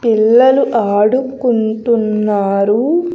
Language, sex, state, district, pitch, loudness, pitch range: Telugu, female, Andhra Pradesh, Sri Satya Sai, 225 Hz, -13 LUFS, 215-255 Hz